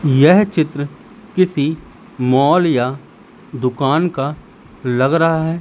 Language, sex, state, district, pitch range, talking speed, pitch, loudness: Hindi, male, Madhya Pradesh, Katni, 135-170 Hz, 105 wpm, 150 Hz, -16 LUFS